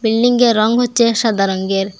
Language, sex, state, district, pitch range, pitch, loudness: Bengali, female, Assam, Hailakandi, 195-240 Hz, 225 Hz, -14 LUFS